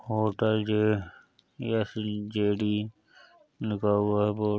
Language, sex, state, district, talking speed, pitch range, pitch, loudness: Hindi, male, Uttar Pradesh, Etah, 120 wpm, 105-110 Hz, 105 Hz, -28 LUFS